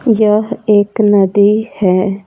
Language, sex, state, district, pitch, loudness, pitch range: Hindi, female, Bihar, Patna, 205 Hz, -12 LUFS, 200-215 Hz